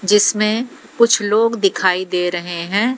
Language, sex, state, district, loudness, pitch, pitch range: Hindi, female, Haryana, Jhajjar, -16 LUFS, 205 Hz, 185-230 Hz